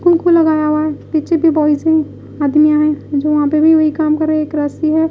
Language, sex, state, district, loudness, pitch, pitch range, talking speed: Hindi, female, Odisha, Malkangiri, -14 LUFS, 310 Hz, 300-315 Hz, 245 wpm